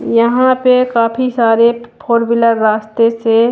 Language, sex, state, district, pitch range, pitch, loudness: Hindi, female, Haryana, Jhajjar, 230-245 Hz, 235 Hz, -12 LUFS